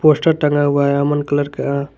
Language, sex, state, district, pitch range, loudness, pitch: Hindi, male, Jharkhand, Garhwa, 140-145 Hz, -16 LUFS, 145 Hz